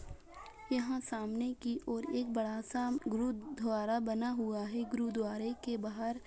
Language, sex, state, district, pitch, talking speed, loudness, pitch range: Bajjika, female, Bihar, Vaishali, 235 Hz, 145 wpm, -37 LUFS, 225-245 Hz